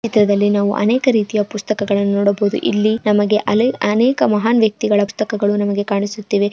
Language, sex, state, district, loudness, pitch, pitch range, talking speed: Kannada, female, Karnataka, Chamarajanagar, -16 LUFS, 210 Hz, 205-215 Hz, 145 wpm